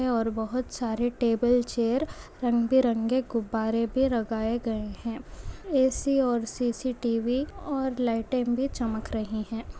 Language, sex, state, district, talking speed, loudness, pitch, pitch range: Hindi, female, West Bengal, Dakshin Dinajpur, 130 wpm, -27 LUFS, 240 Hz, 225-255 Hz